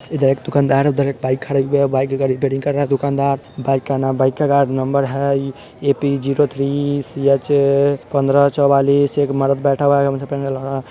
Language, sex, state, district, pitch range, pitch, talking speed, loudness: Hindi, male, Bihar, Sitamarhi, 135-140 Hz, 140 Hz, 200 wpm, -17 LUFS